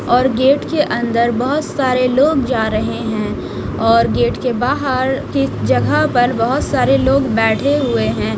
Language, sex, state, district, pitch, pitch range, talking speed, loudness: Hindi, female, Chhattisgarh, Raipur, 255 Hz, 235-275 Hz, 165 wpm, -15 LUFS